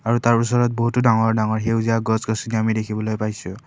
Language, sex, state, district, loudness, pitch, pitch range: Assamese, male, Assam, Kamrup Metropolitan, -20 LUFS, 110 Hz, 110-115 Hz